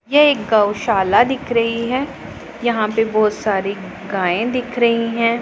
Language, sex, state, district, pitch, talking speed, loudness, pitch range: Hindi, female, Punjab, Pathankot, 230 Hz, 155 wpm, -17 LUFS, 210-240 Hz